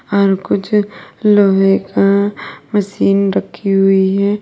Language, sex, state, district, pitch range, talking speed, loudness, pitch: Hindi, female, Uttar Pradesh, Lalitpur, 195-205 Hz, 110 wpm, -14 LUFS, 195 Hz